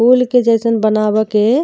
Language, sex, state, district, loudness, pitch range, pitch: Bhojpuri, female, Uttar Pradesh, Gorakhpur, -13 LUFS, 215-245 Hz, 230 Hz